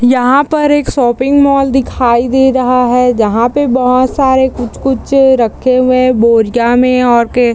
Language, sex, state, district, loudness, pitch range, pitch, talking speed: Hindi, female, Bihar, Madhepura, -10 LUFS, 240-265 Hz, 255 Hz, 175 wpm